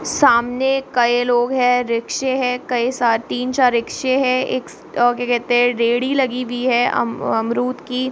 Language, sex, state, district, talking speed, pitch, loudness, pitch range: Hindi, female, Bihar, Muzaffarpur, 135 wpm, 245 Hz, -18 LUFS, 240-255 Hz